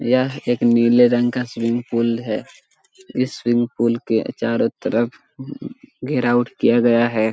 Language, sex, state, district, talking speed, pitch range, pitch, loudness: Hindi, male, Jharkhand, Jamtara, 140 wpm, 115-120 Hz, 120 Hz, -19 LUFS